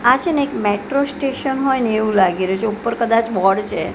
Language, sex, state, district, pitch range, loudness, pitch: Gujarati, female, Gujarat, Gandhinagar, 205-270 Hz, -18 LUFS, 230 Hz